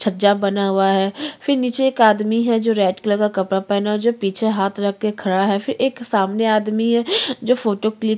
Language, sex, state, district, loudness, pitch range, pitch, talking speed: Hindi, female, Chhattisgarh, Korba, -18 LUFS, 200-235 Hz, 215 Hz, 240 wpm